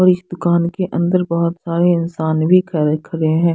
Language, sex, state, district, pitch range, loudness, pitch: Hindi, female, Punjab, Fazilka, 165-180 Hz, -17 LUFS, 170 Hz